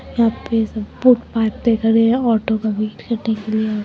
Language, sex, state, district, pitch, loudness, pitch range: Hindi, female, Bihar, Muzaffarpur, 225 Hz, -18 LUFS, 220-230 Hz